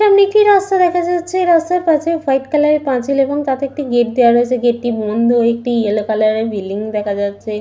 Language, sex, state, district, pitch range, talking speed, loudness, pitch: Bengali, female, West Bengal, Malda, 225-330 Hz, 205 wpm, -15 LUFS, 255 Hz